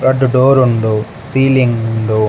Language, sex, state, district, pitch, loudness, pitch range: Tulu, male, Karnataka, Dakshina Kannada, 125 Hz, -13 LUFS, 110-130 Hz